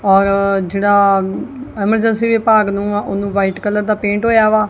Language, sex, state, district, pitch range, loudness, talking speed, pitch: Punjabi, female, Punjab, Kapurthala, 200-220 Hz, -15 LUFS, 165 wpm, 205 Hz